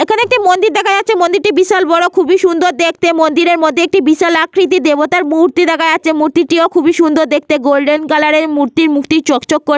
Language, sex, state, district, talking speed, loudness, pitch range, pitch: Bengali, female, Jharkhand, Sahebganj, 195 wpm, -11 LUFS, 310-360 Hz, 335 Hz